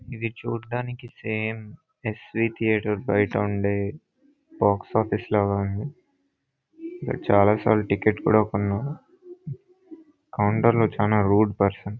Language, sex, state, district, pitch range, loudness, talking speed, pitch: Telugu, male, Andhra Pradesh, Anantapur, 105-140 Hz, -24 LUFS, 115 wpm, 110 Hz